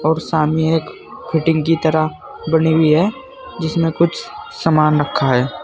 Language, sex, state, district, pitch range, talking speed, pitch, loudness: Hindi, male, Uttar Pradesh, Saharanpur, 155-165 Hz, 150 wpm, 160 Hz, -16 LUFS